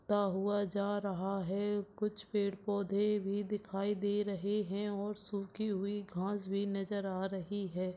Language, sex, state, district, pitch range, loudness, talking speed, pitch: Hindi, female, Chhattisgarh, Balrampur, 195-205 Hz, -36 LUFS, 175 wpm, 200 Hz